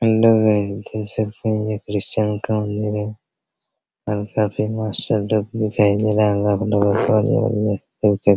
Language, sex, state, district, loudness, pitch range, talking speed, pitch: Hindi, male, Bihar, Araria, -20 LUFS, 105-110 Hz, 45 wpm, 105 Hz